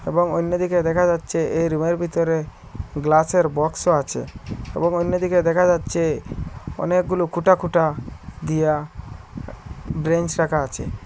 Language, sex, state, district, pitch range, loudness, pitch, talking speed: Bengali, male, Assam, Hailakandi, 150-175 Hz, -21 LUFS, 165 Hz, 110 wpm